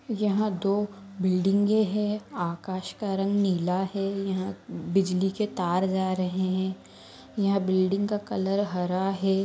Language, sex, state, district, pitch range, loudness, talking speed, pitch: Hindi, female, Chhattisgarh, Bastar, 185-205 Hz, -27 LUFS, 135 wpm, 195 Hz